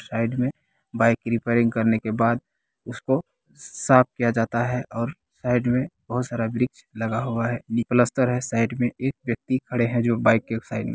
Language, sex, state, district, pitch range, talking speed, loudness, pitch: Hindi, male, Bihar, Kishanganj, 115-125 Hz, 205 wpm, -23 LUFS, 120 Hz